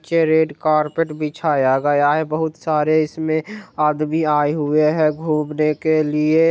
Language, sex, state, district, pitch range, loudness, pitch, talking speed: Bajjika, male, Bihar, Vaishali, 150-160 Hz, -18 LUFS, 155 Hz, 140 wpm